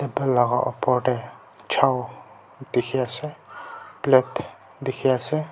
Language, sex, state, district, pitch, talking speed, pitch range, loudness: Nagamese, male, Nagaland, Kohima, 130 Hz, 110 wpm, 125-140 Hz, -23 LUFS